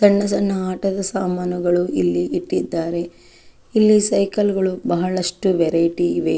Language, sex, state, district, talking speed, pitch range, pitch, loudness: Kannada, female, Karnataka, Chamarajanagar, 105 wpm, 170-195 Hz, 185 Hz, -19 LUFS